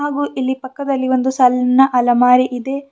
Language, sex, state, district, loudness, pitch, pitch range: Kannada, female, Karnataka, Bidar, -15 LUFS, 260 Hz, 250-270 Hz